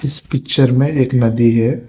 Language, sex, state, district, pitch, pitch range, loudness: Hindi, male, Telangana, Hyderabad, 130 Hz, 120-140 Hz, -14 LUFS